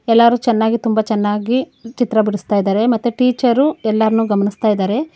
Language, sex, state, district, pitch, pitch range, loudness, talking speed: Kannada, female, Karnataka, Bangalore, 225 Hz, 215-240 Hz, -16 LUFS, 115 wpm